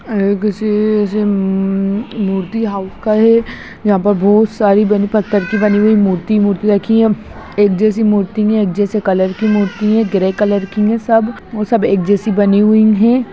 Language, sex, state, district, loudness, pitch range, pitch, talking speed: Hindi, female, Bihar, Gaya, -13 LUFS, 200-215 Hz, 210 Hz, 190 wpm